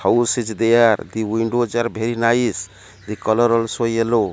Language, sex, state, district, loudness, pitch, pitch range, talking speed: English, male, Odisha, Malkangiri, -18 LUFS, 115 Hz, 110-120 Hz, 165 wpm